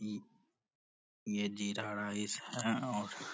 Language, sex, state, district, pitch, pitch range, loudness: Hindi, male, Bihar, Purnia, 105 Hz, 100-105 Hz, -38 LUFS